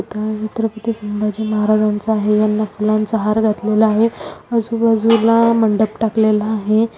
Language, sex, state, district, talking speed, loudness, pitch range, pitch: Marathi, female, Maharashtra, Solapur, 110 wpm, -16 LUFS, 215-225 Hz, 215 Hz